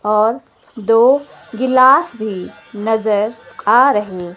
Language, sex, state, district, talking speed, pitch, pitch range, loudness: Hindi, female, Himachal Pradesh, Shimla, 95 wpm, 220 Hz, 210-250 Hz, -14 LUFS